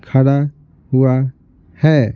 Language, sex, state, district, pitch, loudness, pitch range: Hindi, male, Bihar, Patna, 135 Hz, -16 LUFS, 130-145 Hz